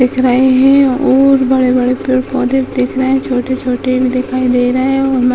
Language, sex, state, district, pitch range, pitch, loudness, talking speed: Hindi, female, Bihar, Sitamarhi, 250-265 Hz, 255 Hz, -12 LUFS, 235 wpm